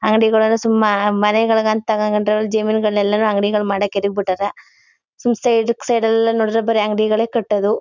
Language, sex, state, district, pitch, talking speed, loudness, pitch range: Kannada, female, Karnataka, Chamarajanagar, 215 Hz, 130 wpm, -17 LUFS, 210-225 Hz